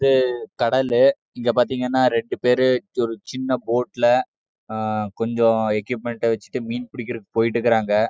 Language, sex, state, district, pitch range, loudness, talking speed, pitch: Tamil, male, Karnataka, Chamarajanagar, 115-130 Hz, -21 LUFS, 110 wpm, 120 Hz